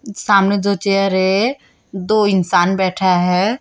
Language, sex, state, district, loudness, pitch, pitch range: Hindi, female, Chhattisgarh, Raipur, -15 LUFS, 195 Hz, 185-205 Hz